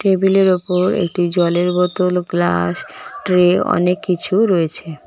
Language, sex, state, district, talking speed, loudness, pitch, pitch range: Bengali, female, West Bengal, Cooch Behar, 120 wpm, -16 LUFS, 180 Hz, 175-185 Hz